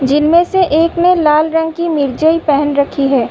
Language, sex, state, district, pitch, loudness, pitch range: Hindi, female, Uttar Pradesh, Budaun, 310 Hz, -12 LUFS, 285-335 Hz